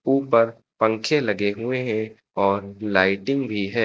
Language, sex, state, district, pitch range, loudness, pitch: Hindi, male, Uttar Pradesh, Lucknow, 100-120 Hz, -22 LUFS, 110 Hz